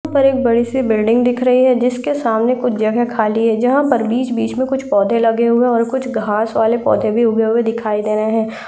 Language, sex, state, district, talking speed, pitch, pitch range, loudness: Hindi, female, Uttar Pradesh, Gorakhpur, 260 wpm, 235 Hz, 225-250 Hz, -15 LUFS